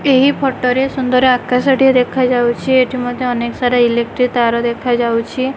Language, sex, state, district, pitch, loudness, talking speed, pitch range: Odia, female, Odisha, Khordha, 250 Hz, -14 LUFS, 150 wpm, 240-260 Hz